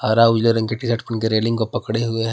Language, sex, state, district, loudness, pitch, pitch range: Hindi, male, Jharkhand, Palamu, -19 LUFS, 115 Hz, 110-115 Hz